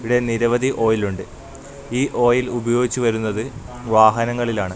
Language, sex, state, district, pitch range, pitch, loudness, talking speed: Malayalam, male, Kerala, Kasaragod, 110-125 Hz, 120 Hz, -19 LUFS, 115 wpm